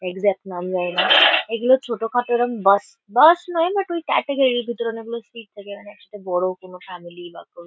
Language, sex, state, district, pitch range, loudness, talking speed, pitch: Bengali, female, West Bengal, Kolkata, 185-245 Hz, -19 LUFS, 205 wpm, 210 Hz